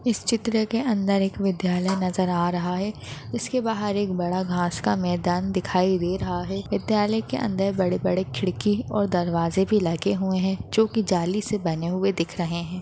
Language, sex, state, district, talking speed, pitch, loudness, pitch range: Hindi, female, Maharashtra, Aurangabad, 195 wpm, 190 Hz, -24 LUFS, 175-205 Hz